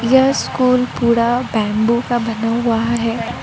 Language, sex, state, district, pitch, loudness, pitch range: Hindi, female, Arunachal Pradesh, Lower Dibang Valley, 235 Hz, -16 LUFS, 230-245 Hz